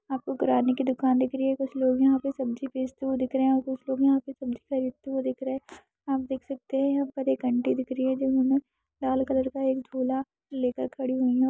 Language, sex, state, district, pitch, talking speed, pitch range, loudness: Hindi, female, Bihar, Purnia, 265 Hz, 245 wpm, 260-270 Hz, -27 LUFS